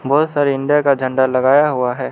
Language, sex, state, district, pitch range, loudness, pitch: Hindi, male, Arunachal Pradesh, Lower Dibang Valley, 130-145 Hz, -15 LUFS, 135 Hz